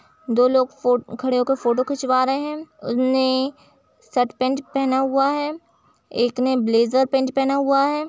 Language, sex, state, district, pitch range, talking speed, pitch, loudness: Hindi, female, Uttar Pradesh, Jalaun, 250-275 Hz, 165 wpm, 260 Hz, -20 LUFS